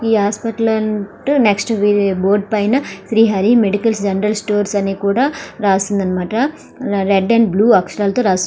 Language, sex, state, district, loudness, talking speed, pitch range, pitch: Telugu, female, Andhra Pradesh, Srikakulam, -15 LUFS, 140 wpm, 200-225 Hz, 210 Hz